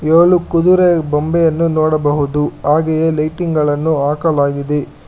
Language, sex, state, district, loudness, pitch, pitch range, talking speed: Kannada, male, Karnataka, Bangalore, -14 LUFS, 155 Hz, 150-165 Hz, 95 wpm